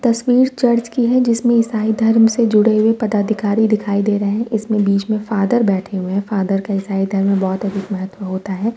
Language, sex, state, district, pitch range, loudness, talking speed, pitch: Hindi, female, Uttar Pradesh, Varanasi, 200-230 Hz, -16 LUFS, 220 wpm, 215 Hz